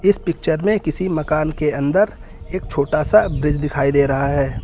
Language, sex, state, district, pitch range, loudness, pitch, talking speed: Hindi, male, Uttar Pradesh, Lucknow, 140-185 Hz, -18 LUFS, 155 Hz, 195 wpm